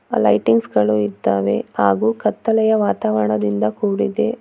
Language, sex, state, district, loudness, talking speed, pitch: Kannada, female, Karnataka, Bangalore, -18 LUFS, 110 wpm, 105 Hz